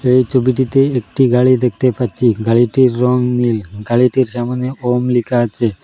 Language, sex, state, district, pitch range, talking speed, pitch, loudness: Bengali, male, Assam, Hailakandi, 120-130 Hz, 145 wpm, 125 Hz, -14 LUFS